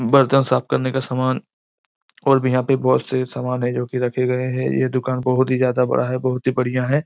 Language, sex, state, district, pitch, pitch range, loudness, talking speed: Hindi, male, Chhattisgarh, Korba, 130 Hz, 125-130 Hz, -20 LUFS, 240 wpm